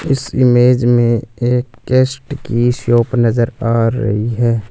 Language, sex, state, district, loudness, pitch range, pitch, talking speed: Hindi, male, Punjab, Fazilka, -14 LUFS, 115-125 Hz, 120 Hz, 140 wpm